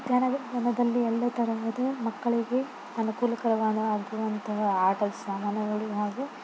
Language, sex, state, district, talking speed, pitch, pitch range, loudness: Kannada, female, Karnataka, Belgaum, 75 wpm, 225 Hz, 210-245 Hz, -28 LUFS